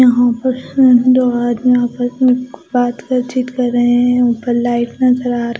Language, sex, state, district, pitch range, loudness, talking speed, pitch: Hindi, female, Odisha, Malkangiri, 240-255 Hz, -14 LUFS, 205 wpm, 245 Hz